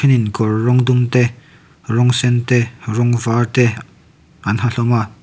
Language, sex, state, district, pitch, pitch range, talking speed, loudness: Mizo, male, Mizoram, Aizawl, 120 Hz, 115-125 Hz, 170 wpm, -16 LUFS